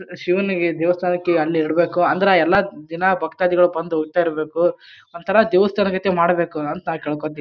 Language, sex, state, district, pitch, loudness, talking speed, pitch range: Kannada, male, Karnataka, Bijapur, 175 Hz, -19 LUFS, 145 wpm, 165-185 Hz